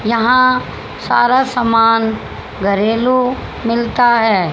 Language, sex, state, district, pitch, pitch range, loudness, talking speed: Hindi, female, Haryana, Charkhi Dadri, 230 Hz, 225-250 Hz, -14 LUFS, 80 wpm